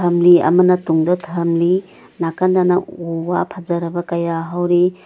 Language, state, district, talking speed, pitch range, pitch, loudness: Manipuri, Manipur, Imphal West, 105 wpm, 170-180 Hz, 175 Hz, -17 LUFS